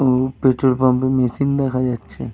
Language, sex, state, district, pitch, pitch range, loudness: Bengali, male, Jharkhand, Jamtara, 130 Hz, 125-130 Hz, -18 LUFS